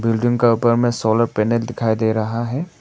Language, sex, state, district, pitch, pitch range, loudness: Hindi, male, Arunachal Pradesh, Papum Pare, 115 Hz, 110-120 Hz, -18 LUFS